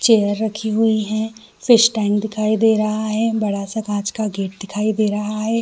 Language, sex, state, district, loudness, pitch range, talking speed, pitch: Hindi, female, Chhattisgarh, Bilaspur, -19 LUFS, 210-220 Hz, 215 wpm, 215 Hz